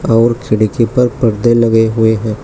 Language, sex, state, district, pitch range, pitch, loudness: Hindi, male, Uttar Pradesh, Shamli, 110-120 Hz, 115 Hz, -12 LUFS